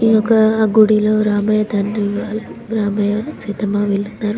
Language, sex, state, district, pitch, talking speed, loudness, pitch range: Telugu, female, Telangana, Nalgonda, 215 Hz, 125 wpm, -16 LUFS, 205-220 Hz